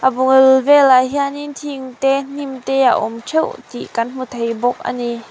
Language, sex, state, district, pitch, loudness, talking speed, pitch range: Mizo, female, Mizoram, Aizawl, 265 Hz, -16 LUFS, 205 wpm, 245-280 Hz